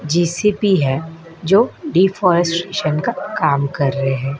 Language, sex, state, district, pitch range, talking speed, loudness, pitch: Hindi, male, Madhya Pradesh, Dhar, 145-190 Hz, 125 wpm, -17 LUFS, 170 Hz